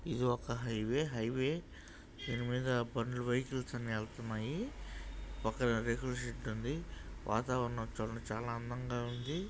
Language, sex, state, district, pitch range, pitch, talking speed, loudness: Telugu, male, Andhra Pradesh, Chittoor, 115-125 Hz, 120 Hz, 115 wpm, -38 LUFS